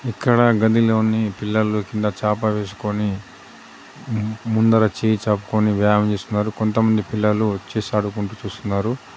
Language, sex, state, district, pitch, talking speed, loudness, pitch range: Telugu, male, Telangana, Adilabad, 105 Hz, 105 wpm, -20 LUFS, 105-110 Hz